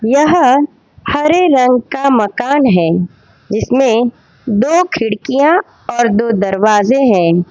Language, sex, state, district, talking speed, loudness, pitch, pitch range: Hindi, female, Gujarat, Valsad, 105 wpm, -12 LUFS, 245 Hz, 210-280 Hz